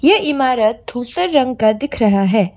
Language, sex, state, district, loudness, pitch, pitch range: Hindi, female, Assam, Kamrup Metropolitan, -16 LUFS, 245 Hz, 215-285 Hz